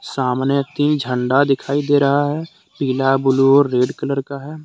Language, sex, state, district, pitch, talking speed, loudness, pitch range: Hindi, male, Jharkhand, Deoghar, 140 Hz, 165 wpm, -17 LUFS, 135-145 Hz